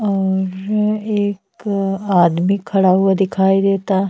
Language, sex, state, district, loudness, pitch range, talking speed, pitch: Bhojpuri, female, Uttar Pradesh, Ghazipur, -17 LUFS, 190-205 Hz, 105 wpm, 195 Hz